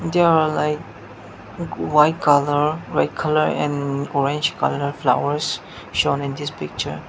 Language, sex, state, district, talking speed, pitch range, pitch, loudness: English, male, Nagaland, Dimapur, 125 wpm, 140-150 Hz, 145 Hz, -20 LUFS